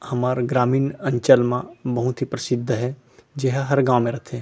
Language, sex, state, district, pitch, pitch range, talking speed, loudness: Chhattisgarhi, male, Chhattisgarh, Rajnandgaon, 125 Hz, 125-135 Hz, 175 wpm, -21 LUFS